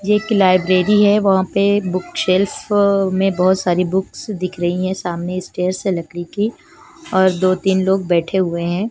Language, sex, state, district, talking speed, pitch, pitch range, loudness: Hindi, female, Chandigarh, Chandigarh, 180 wpm, 185 Hz, 180-200 Hz, -17 LUFS